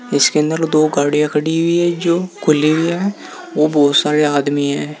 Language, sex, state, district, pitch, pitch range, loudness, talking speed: Hindi, male, Uttar Pradesh, Saharanpur, 155 Hz, 150-170 Hz, -15 LUFS, 190 wpm